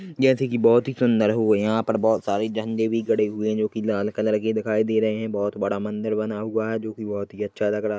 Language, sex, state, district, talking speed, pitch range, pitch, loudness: Hindi, male, Chhattisgarh, Korba, 280 wpm, 105-110 Hz, 110 Hz, -23 LUFS